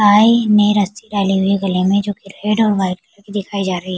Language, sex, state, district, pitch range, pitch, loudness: Hindi, female, Bihar, Kishanganj, 190-210 Hz, 200 Hz, -16 LUFS